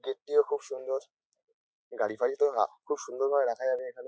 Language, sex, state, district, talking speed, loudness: Bengali, male, West Bengal, North 24 Parganas, 175 wpm, -30 LUFS